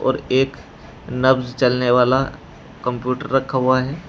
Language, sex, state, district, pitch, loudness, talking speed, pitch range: Hindi, male, Uttar Pradesh, Shamli, 130 Hz, -19 LUFS, 130 wpm, 125-135 Hz